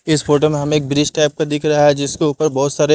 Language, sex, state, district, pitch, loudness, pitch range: Hindi, male, Haryana, Jhajjar, 150 Hz, -16 LUFS, 145-155 Hz